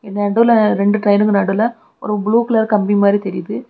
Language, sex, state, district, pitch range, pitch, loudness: Tamil, female, Tamil Nadu, Kanyakumari, 200-225 Hz, 210 Hz, -15 LUFS